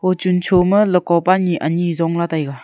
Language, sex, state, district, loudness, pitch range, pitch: Wancho, female, Arunachal Pradesh, Longding, -16 LUFS, 170-185 Hz, 175 Hz